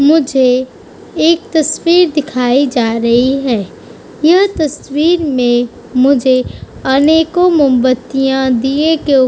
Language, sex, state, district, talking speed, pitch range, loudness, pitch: Hindi, female, Uttar Pradesh, Budaun, 115 wpm, 255-315 Hz, -12 LUFS, 270 Hz